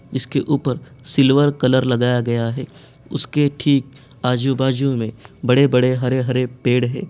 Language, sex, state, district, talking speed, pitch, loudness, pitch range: Hindi, male, Jharkhand, Sahebganj, 125 wpm, 130 Hz, -18 LUFS, 125-140 Hz